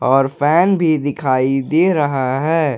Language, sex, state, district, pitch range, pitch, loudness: Hindi, male, Jharkhand, Ranchi, 135-160 Hz, 145 Hz, -16 LUFS